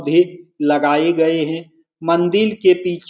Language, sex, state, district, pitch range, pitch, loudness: Hindi, male, Bihar, Saran, 160-175 Hz, 170 Hz, -17 LUFS